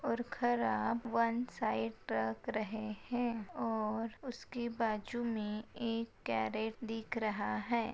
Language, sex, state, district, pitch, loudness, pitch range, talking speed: Hindi, female, Maharashtra, Sindhudurg, 225 Hz, -37 LUFS, 215-235 Hz, 120 wpm